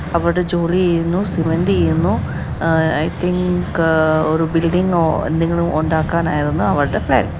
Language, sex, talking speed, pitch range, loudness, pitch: Malayalam, female, 50 wpm, 155-175 Hz, -17 LUFS, 165 Hz